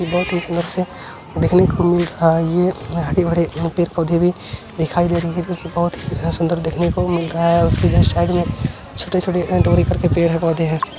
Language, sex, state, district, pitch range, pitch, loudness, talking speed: Hindi, male, Bihar, Araria, 160-175 Hz, 170 Hz, -17 LUFS, 180 wpm